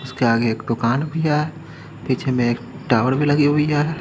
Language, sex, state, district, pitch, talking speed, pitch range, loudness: Hindi, male, Haryana, Charkhi Dadri, 135 Hz, 210 wpm, 120-150 Hz, -20 LUFS